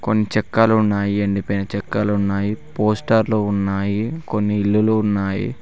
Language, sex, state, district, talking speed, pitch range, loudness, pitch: Telugu, male, Telangana, Mahabubabad, 95 wpm, 100-110 Hz, -19 LUFS, 105 Hz